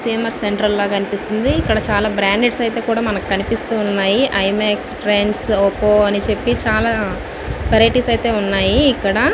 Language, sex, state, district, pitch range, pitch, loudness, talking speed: Telugu, female, Andhra Pradesh, Visakhapatnam, 200-230 Hz, 210 Hz, -16 LUFS, 150 wpm